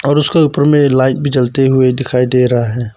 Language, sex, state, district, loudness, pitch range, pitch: Hindi, male, Arunachal Pradesh, Papum Pare, -12 LUFS, 125-145 Hz, 130 Hz